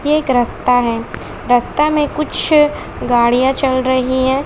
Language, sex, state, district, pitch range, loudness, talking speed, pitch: Hindi, female, Bihar, West Champaran, 245-295 Hz, -15 LUFS, 135 wpm, 260 Hz